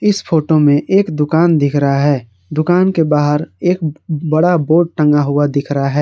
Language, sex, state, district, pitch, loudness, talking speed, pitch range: Hindi, male, Jharkhand, Garhwa, 155 Hz, -14 LUFS, 190 wpm, 145-165 Hz